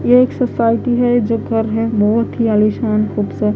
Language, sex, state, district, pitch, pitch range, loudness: Hindi, female, Haryana, Jhajjar, 225 Hz, 215-245 Hz, -15 LUFS